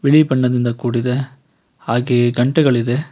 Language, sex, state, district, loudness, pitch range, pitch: Kannada, male, Karnataka, Bangalore, -16 LUFS, 120-140 Hz, 125 Hz